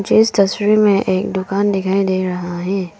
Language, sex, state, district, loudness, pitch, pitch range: Hindi, female, Arunachal Pradesh, Papum Pare, -16 LUFS, 195 Hz, 185-205 Hz